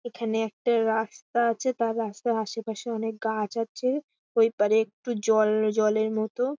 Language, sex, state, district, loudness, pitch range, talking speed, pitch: Bengali, female, West Bengal, Paschim Medinipur, -26 LUFS, 220-235 Hz, 135 wpm, 225 Hz